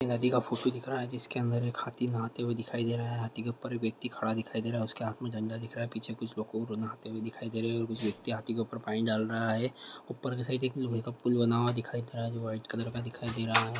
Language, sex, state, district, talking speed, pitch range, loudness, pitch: Hindi, male, Andhra Pradesh, Guntur, 310 wpm, 115-120 Hz, -34 LUFS, 115 Hz